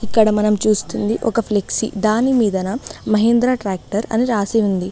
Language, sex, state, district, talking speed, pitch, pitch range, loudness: Telugu, female, Telangana, Mahabubabad, 145 wpm, 215 Hz, 205-230 Hz, -18 LUFS